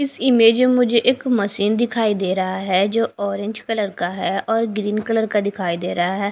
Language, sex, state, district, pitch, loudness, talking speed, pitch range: Hindi, female, Punjab, Fazilka, 210 Hz, -19 LUFS, 220 wpm, 195-230 Hz